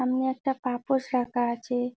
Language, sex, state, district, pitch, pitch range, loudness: Bengali, female, West Bengal, Jalpaiguri, 250 Hz, 245-260 Hz, -28 LUFS